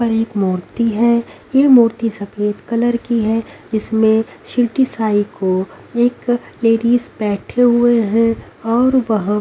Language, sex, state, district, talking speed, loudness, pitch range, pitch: Hindi, female, Haryana, Rohtak, 135 wpm, -16 LUFS, 215-240 Hz, 230 Hz